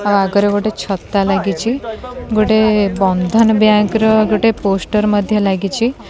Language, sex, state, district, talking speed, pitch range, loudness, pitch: Odia, female, Odisha, Khordha, 110 wpm, 200-220 Hz, -14 LUFS, 210 Hz